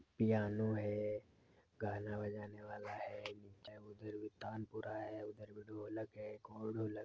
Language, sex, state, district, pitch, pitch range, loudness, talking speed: Hindi, male, Uttar Pradesh, Varanasi, 105 Hz, 105-110 Hz, -44 LUFS, 145 wpm